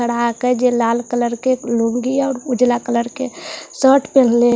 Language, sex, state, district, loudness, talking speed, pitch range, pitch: Hindi, female, Bihar, Katihar, -17 LUFS, 210 wpm, 235-260 Hz, 245 Hz